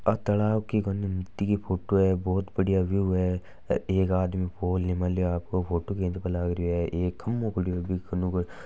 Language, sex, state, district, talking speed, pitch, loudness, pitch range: Marwari, male, Rajasthan, Nagaur, 165 wpm, 90 Hz, -28 LUFS, 90-100 Hz